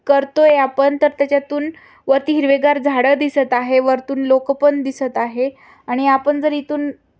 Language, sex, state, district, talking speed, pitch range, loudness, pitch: Marathi, female, Maharashtra, Aurangabad, 150 wpm, 270-290 Hz, -16 LUFS, 280 Hz